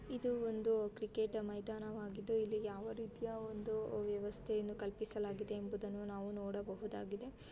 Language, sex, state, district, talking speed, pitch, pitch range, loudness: Kannada, female, Karnataka, Dakshina Kannada, 105 wpm, 215 Hz, 205-220 Hz, -42 LUFS